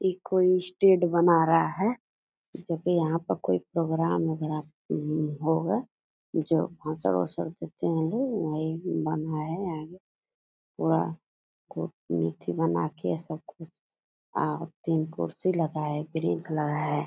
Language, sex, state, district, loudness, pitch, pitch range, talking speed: Angika, female, Bihar, Purnia, -28 LUFS, 160 Hz, 150-170 Hz, 120 wpm